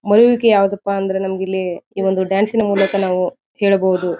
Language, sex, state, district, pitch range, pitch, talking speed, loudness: Kannada, female, Karnataka, Bijapur, 190-200 Hz, 195 Hz, 155 wpm, -17 LUFS